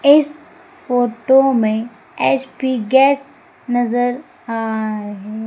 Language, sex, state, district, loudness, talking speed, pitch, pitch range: Hindi, female, Madhya Pradesh, Umaria, -17 LUFS, 90 wpm, 245 Hz, 220-280 Hz